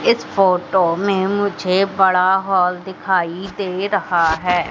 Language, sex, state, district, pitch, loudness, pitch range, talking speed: Hindi, female, Madhya Pradesh, Katni, 190 Hz, -17 LUFS, 180-195 Hz, 125 wpm